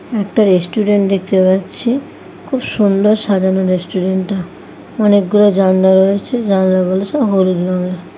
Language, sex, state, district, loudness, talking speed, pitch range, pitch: Bengali, female, West Bengal, Kolkata, -14 LUFS, 125 wpm, 185-210 Hz, 195 Hz